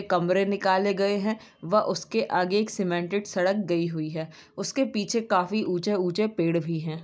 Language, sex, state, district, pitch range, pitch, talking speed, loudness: Hindi, female, Chhattisgarh, Bilaspur, 175-205 Hz, 190 Hz, 180 wpm, -26 LUFS